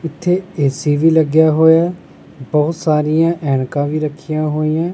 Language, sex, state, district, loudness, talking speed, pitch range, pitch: Punjabi, male, Punjab, Pathankot, -15 LUFS, 135 wpm, 150-165 Hz, 155 Hz